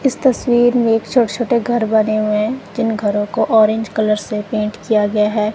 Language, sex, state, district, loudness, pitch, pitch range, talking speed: Hindi, female, Punjab, Kapurthala, -16 LUFS, 220 Hz, 210-240 Hz, 215 wpm